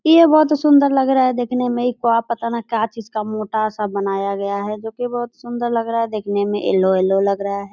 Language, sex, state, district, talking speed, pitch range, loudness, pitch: Hindi, female, Bihar, Purnia, 255 wpm, 205-245 Hz, -18 LUFS, 230 Hz